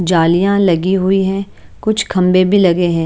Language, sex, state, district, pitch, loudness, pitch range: Hindi, female, Chandigarh, Chandigarh, 185 Hz, -13 LUFS, 175-195 Hz